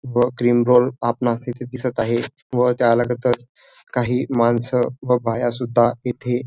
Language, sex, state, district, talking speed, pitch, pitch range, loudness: Marathi, male, Maharashtra, Dhule, 150 wpm, 120 Hz, 120-125 Hz, -20 LUFS